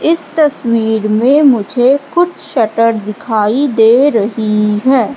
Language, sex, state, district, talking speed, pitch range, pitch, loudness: Hindi, female, Madhya Pradesh, Katni, 115 wpm, 220-285 Hz, 235 Hz, -12 LUFS